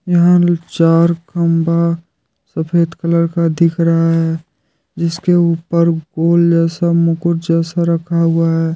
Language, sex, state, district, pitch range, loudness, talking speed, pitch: Hindi, male, Jharkhand, Deoghar, 165-170 Hz, -14 LUFS, 125 wpm, 170 Hz